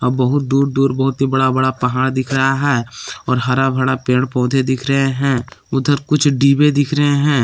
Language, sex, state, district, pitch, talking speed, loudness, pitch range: Hindi, male, Jharkhand, Palamu, 135 Hz, 200 wpm, -16 LUFS, 130-140 Hz